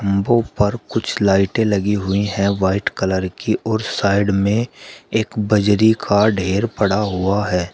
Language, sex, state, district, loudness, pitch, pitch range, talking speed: Hindi, male, Uttar Pradesh, Shamli, -18 LUFS, 100 Hz, 95-105 Hz, 155 wpm